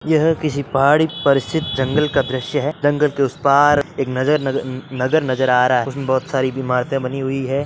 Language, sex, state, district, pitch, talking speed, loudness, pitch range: Hindi, male, Uttar Pradesh, Varanasi, 135 Hz, 220 wpm, -18 LUFS, 130-150 Hz